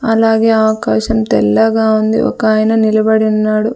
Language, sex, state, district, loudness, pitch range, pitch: Telugu, female, Andhra Pradesh, Sri Satya Sai, -12 LUFS, 215-225 Hz, 220 Hz